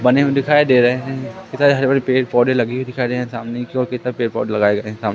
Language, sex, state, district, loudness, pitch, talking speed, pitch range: Hindi, male, Madhya Pradesh, Katni, -17 LUFS, 125 Hz, 300 wpm, 120-135 Hz